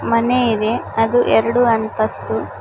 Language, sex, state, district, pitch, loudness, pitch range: Kannada, female, Karnataka, Koppal, 225 Hz, -17 LUFS, 215-240 Hz